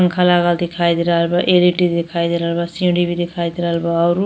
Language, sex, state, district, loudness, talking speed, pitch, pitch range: Bhojpuri, female, Uttar Pradesh, Deoria, -17 LUFS, 310 wpm, 175 Hz, 170-175 Hz